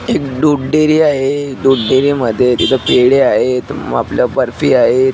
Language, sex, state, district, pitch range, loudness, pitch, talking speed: Marathi, male, Maharashtra, Dhule, 130-145 Hz, -12 LUFS, 135 Hz, 150 wpm